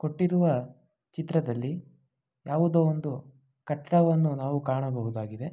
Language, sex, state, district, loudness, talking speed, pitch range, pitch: Kannada, male, Karnataka, Mysore, -27 LUFS, 75 wpm, 130-160 Hz, 145 Hz